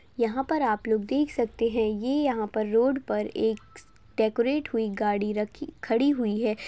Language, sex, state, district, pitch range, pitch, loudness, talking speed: Hindi, female, Maharashtra, Nagpur, 215-265 Hz, 230 Hz, -27 LUFS, 180 wpm